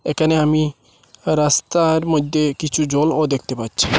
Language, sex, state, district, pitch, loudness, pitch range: Bengali, male, Assam, Hailakandi, 150 Hz, -18 LUFS, 135-155 Hz